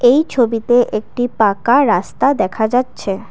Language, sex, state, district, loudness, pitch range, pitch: Bengali, female, Assam, Kamrup Metropolitan, -15 LUFS, 215-250 Hz, 240 Hz